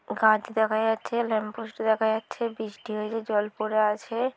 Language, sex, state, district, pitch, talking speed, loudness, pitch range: Bengali, female, West Bengal, North 24 Parganas, 220 Hz, 150 wpm, -27 LUFS, 215-225 Hz